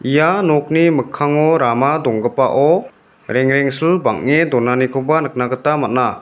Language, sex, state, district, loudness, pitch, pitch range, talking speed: Garo, male, Meghalaya, West Garo Hills, -15 LUFS, 145 Hz, 130-160 Hz, 105 wpm